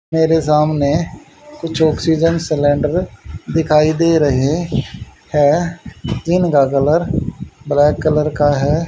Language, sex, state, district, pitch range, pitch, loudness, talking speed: Hindi, male, Haryana, Rohtak, 145-165 Hz, 155 Hz, -15 LUFS, 100 wpm